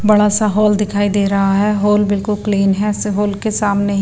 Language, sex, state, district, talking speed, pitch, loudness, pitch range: Hindi, female, Bihar, Patna, 210 wpm, 205 Hz, -15 LUFS, 200-210 Hz